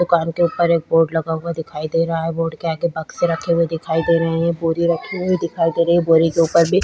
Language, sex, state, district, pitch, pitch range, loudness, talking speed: Hindi, female, Bihar, Vaishali, 165 Hz, 165-170 Hz, -18 LUFS, 280 wpm